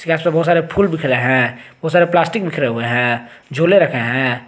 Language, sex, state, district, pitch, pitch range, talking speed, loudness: Hindi, male, Jharkhand, Garhwa, 140 Hz, 120-170 Hz, 200 wpm, -16 LUFS